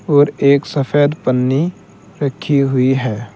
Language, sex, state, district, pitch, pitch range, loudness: Hindi, male, Uttar Pradesh, Saharanpur, 140 Hz, 130-145 Hz, -15 LUFS